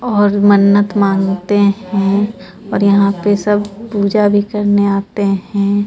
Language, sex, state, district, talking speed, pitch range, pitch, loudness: Hindi, female, Jharkhand, Ranchi, 135 wpm, 200-205 Hz, 200 Hz, -13 LUFS